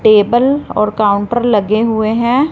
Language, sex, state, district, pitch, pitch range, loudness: Hindi, female, Punjab, Fazilka, 220 Hz, 210-240 Hz, -13 LUFS